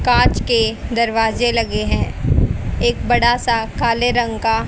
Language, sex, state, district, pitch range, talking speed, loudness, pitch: Hindi, female, Haryana, Charkhi Dadri, 225-240 Hz, 140 wpm, -17 LUFS, 235 Hz